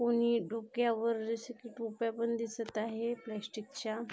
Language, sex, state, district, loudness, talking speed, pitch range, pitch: Marathi, female, Maharashtra, Aurangabad, -36 LUFS, 160 wpm, 220-235 Hz, 230 Hz